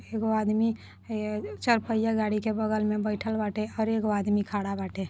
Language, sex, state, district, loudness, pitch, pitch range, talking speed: Bhojpuri, female, Uttar Pradesh, Deoria, -28 LUFS, 215 Hz, 210-220 Hz, 175 wpm